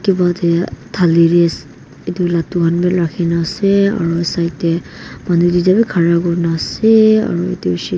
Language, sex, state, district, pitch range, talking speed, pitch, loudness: Nagamese, female, Nagaland, Kohima, 170-180 Hz, 165 wpm, 170 Hz, -14 LUFS